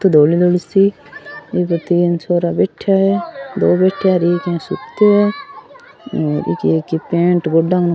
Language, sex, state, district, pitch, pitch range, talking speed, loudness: Rajasthani, female, Rajasthan, Churu, 180 Hz, 170-200 Hz, 180 wpm, -15 LUFS